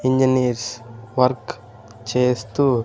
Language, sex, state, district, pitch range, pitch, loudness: Telugu, male, Andhra Pradesh, Sri Satya Sai, 115-130 Hz, 125 Hz, -21 LUFS